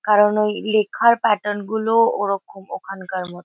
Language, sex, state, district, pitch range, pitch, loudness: Bengali, female, West Bengal, Kolkata, 195-215 Hz, 210 Hz, -19 LUFS